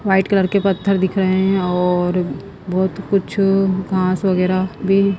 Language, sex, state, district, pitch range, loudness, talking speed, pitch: Hindi, female, Himachal Pradesh, Shimla, 185-195 Hz, -17 LUFS, 150 wpm, 190 Hz